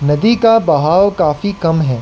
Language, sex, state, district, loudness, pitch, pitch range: Hindi, male, Arunachal Pradesh, Lower Dibang Valley, -13 LUFS, 170 Hz, 150-205 Hz